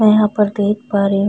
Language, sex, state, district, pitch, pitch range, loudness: Hindi, female, Uttar Pradesh, Jyotiba Phule Nagar, 205 Hz, 200-210 Hz, -16 LUFS